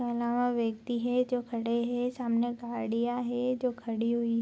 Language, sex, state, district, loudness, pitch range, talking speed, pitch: Hindi, female, Bihar, Araria, -31 LUFS, 235-245 Hz, 190 wpm, 240 Hz